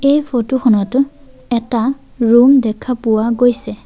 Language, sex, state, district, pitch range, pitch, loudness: Assamese, female, Assam, Sonitpur, 230-265 Hz, 245 Hz, -14 LUFS